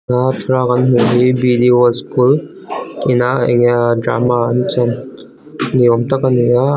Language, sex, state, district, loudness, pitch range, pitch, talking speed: Mizo, male, Mizoram, Aizawl, -13 LUFS, 120-130 Hz, 125 Hz, 185 wpm